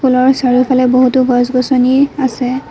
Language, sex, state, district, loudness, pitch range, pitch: Assamese, female, Assam, Kamrup Metropolitan, -12 LUFS, 250-260 Hz, 255 Hz